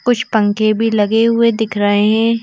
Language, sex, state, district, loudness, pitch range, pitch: Hindi, female, Madhya Pradesh, Bhopal, -14 LUFS, 210-230 Hz, 220 Hz